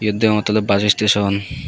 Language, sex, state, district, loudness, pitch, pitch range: Chakma, male, Tripura, West Tripura, -16 LUFS, 105 Hz, 100-105 Hz